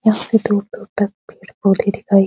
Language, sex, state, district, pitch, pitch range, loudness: Hindi, female, Bihar, Supaul, 205 Hz, 200-220 Hz, -18 LUFS